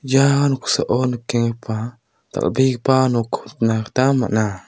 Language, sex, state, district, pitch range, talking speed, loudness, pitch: Garo, male, Meghalaya, South Garo Hills, 115-130 Hz, 105 wpm, -19 LUFS, 120 Hz